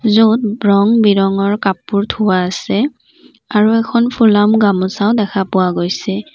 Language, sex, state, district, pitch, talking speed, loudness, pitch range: Assamese, female, Assam, Kamrup Metropolitan, 210 Hz, 125 wpm, -14 LUFS, 195-225 Hz